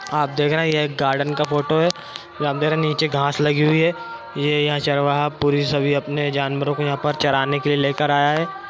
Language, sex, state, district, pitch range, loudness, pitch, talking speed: Hindi, male, Bihar, Madhepura, 145-150 Hz, -20 LUFS, 145 Hz, 220 wpm